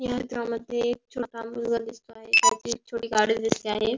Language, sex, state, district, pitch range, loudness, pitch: Marathi, female, Maharashtra, Pune, 225-240 Hz, -25 LUFS, 235 Hz